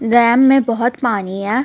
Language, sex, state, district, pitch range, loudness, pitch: Hindi, female, Jharkhand, Ranchi, 225-255 Hz, -14 LUFS, 235 Hz